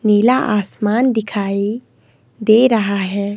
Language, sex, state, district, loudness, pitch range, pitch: Hindi, female, Himachal Pradesh, Shimla, -16 LUFS, 200-225 Hz, 210 Hz